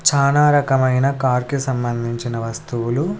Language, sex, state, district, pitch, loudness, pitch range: Telugu, male, Andhra Pradesh, Sri Satya Sai, 130 Hz, -19 LUFS, 120-140 Hz